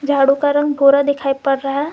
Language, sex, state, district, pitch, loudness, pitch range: Hindi, female, Jharkhand, Garhwa, 280 Hz, -15 LUFS, 275-290 Hz